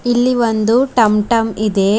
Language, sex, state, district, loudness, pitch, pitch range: Kannada, female, Karnataka, Bidar, -14 LUFS, 225 Hz, 215-240 Hz